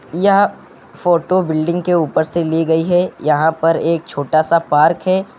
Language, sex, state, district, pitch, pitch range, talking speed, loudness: Hindi, male, Uttar Pradesh, Lucknow, 165 Hz, 160-180 Hz, 180 wpm, -15 LUFS